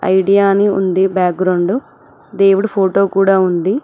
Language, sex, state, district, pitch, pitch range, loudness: Telugu, female, Telangana, Mahabubabad, 195 Hz, 185-195 Hz, -13 LUFS